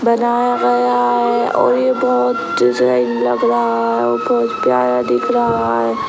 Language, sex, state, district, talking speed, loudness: Hindi, male, Bihar, Sitamarhi, 130 wpm, -15 LUFS